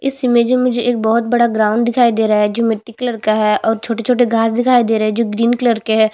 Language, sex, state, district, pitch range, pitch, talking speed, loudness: Hindi, female, Chhattisgarh, Bastar, 220-245 Hz, 230 Hz, 315 wpm, -15 LUFS